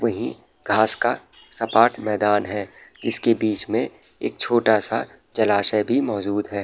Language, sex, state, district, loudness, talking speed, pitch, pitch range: Hindi, male, Bihar, Saharsa, -21 LUFS, 135 wpm, 105 Hz, 100-110 Hz